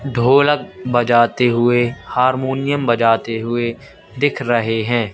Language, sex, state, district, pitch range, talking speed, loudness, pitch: Hindi, male, Madhya Pradesh, Katni, 120-130 Hz, 105 wpm, -17 LUFS, 120 Hz